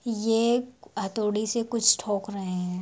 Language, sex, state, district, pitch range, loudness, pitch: Hindi, female, Bihar, Sitamarhi, 200-235 Hz, -26 LUFS, 220 Hz